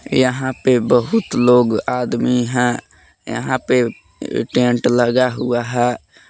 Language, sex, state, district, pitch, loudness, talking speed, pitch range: Hindi, male, Jharkhand, Palamu, 125 Hz, -17 LUFS, 115 wpm, 120-125 Hz